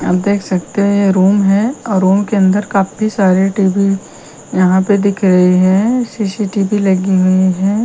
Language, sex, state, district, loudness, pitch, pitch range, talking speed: Hindi, female, Punjab, Kapurthala, -13 LUFS, 195 Hz, 185-205 Hz, 170 wpm